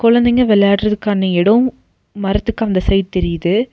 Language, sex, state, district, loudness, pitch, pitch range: Tamil, female, Tamil Nadu, Nilgiris, -15 LUFS, 210 Hz, 195-230 Hz